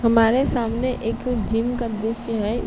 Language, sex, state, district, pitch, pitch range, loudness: Hindi, female, Uttar Pradesh, Jalaun, 230 Hz, 225-240 Hz, -22 LUFS